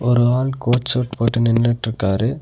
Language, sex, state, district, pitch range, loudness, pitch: Tamil, male, Tamil Nadu, Nilgiris, 115-125 Hz, -18 LUFS, 120 Hz